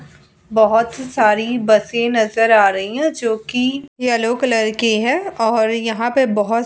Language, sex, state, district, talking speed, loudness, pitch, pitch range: Hindi, female, Bihar, Vaishali, 170 wpm, -16 LUFS, 230 Hz, 220-245 Hz